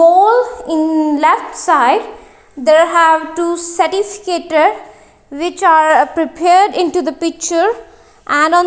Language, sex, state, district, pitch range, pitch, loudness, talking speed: English, female, Punjab, Kapurthala, 320-375 Hz, 340 Hz, -13 LUFS, 110 wpm